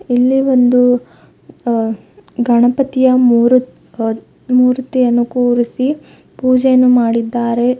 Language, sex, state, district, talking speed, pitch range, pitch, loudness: Kannada, female, Karnataka, Bidar, 75 wpm, 240-255 Hz, 245 Hz, -13 LUFS